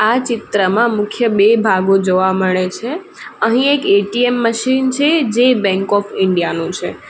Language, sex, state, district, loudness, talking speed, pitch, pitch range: Gujarati, female, Gujarat, Valsad, -14 LUFS, 160 wpm, 215 Hz, 190-245 Hz